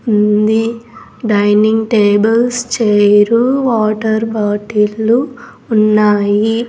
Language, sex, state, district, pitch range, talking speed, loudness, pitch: Telugu, female, Andhra Pradesh, Sri Satya Sai, 210-230 Hz, 65 wpm, -12 LUFS, 220 Hz